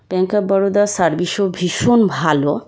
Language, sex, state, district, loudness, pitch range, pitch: Bengali, female, West Bengal, Kolkata, -16 LUFS, 170-200 Hz, 185 Hz